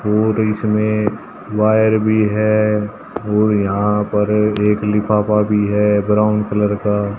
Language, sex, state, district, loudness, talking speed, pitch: Hindi, male, Haryana, Jhajjar, -16 LUFS, 125 wpm, 105 Hz